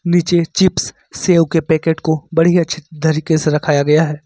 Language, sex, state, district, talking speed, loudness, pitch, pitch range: Hindi, male, Uttar Pradesh, Lucknow, 195 wpm, -15 LUFS, 160 Hz, 150-170 Hz